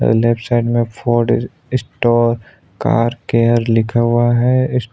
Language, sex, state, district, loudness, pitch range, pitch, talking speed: Hindi, male, Maharashtra, Aurangabad, -16 LUFS, 115-120 Hz, 120 Hz, 160 wpm